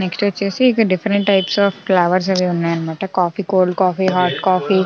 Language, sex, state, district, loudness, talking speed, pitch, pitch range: Telugu, female, Andhra Pradesh, Chittoor, -16 LUFS, 195 wpm, 190 Hz, 180-200 Hz